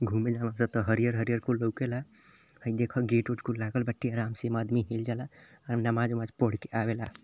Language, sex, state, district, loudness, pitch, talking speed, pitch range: Bhojpuri, male, Uttar Pradesh, Ghazipur, -31 LUFS, 115 Hz, 215 wpm, 115-125 Hz